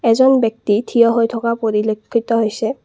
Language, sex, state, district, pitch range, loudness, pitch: Assamese, female, Assam, Kamrup Metropolitan, 220-235 Hz, -16 LUFS, 230 Hz